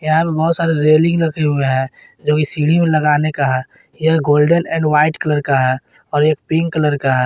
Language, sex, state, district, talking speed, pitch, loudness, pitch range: Hindi, male, Jharkhand, Garhwa, 230 wpm, 155 Hz, -15 LUFS, 145-160 Hz